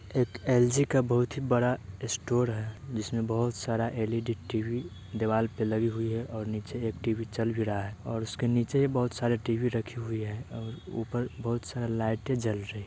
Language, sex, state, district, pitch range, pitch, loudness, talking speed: Hindi, male, Bihar, Sitamarhi, 110-120 Hz, 115 Hz, -30 LUFS, 185 wpm